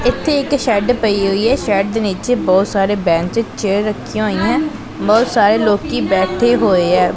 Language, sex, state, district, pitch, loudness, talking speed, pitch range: Punjabi, male, Punjab, Pathankot, 210 Hz, -15 LUFS, 175 wpm, 195-230 Hz